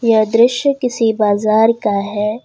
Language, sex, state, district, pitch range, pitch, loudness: Hindi, female, Jharkhand, Ranchi, 210-235 Hz, 220 Hz, -14 LUFS